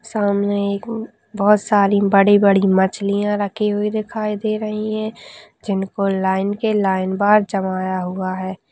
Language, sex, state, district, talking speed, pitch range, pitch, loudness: Hindi, female, Rajasthan, Nagaur, 145 wpm, 195-210 Hz, 200 Hz, -18 LUFS